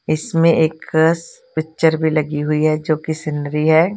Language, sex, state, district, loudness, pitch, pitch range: Hindi, female, Punjab, Kapurthala, -17 LUFS, 160 Hz, 155-160 Hz